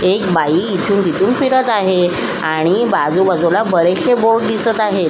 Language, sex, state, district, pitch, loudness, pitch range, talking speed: Marathi, female, Maharashtra, Solapur, 190 Hz, -14 LUFS, 170-225 Hz, 155 wpm